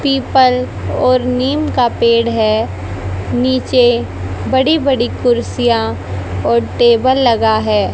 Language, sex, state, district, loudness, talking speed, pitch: Hindi, female, Haryana, Jhajjar, -14 LUFS, 105 wpm, 235 Hz